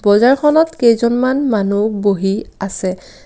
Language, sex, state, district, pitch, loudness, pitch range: Assamese, female, Assam, Kamrup Metropolitan, 220 Hz, -15 LUFS, 200-255 Hz